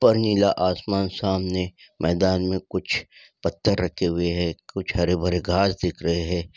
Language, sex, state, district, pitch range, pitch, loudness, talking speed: Hindi, male, Uttar Pradesh, Ghazipur, 85-95 Hz, 90 Hz, -24 LUFS, 165 wpm